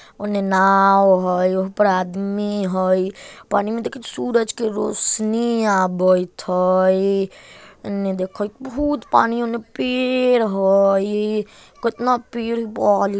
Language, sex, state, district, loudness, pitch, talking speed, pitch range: Bajjika, male, Bihar, Vaishali, -19 LUFS, 205 Hz, 125 wpm, 190-230 Hz